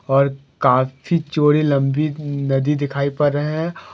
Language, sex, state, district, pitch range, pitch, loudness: Hindi, male, Jharkhand, Deoghar, 140-150 Hz, 145 Hz, -19 LUFS